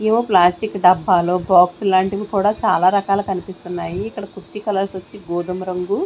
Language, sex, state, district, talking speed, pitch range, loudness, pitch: Telugu, female, Andhra Pradesh, Sri Satya Sai, 140 wpm, 180-205 Hz, -18 LUFS, 190 Hz